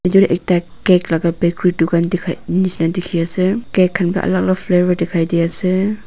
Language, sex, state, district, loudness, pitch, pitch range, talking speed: Nagamese, female, Nagaland, Dimapur, -16 LUFS, 180 Hz, 170-185 Hz, 160 wpm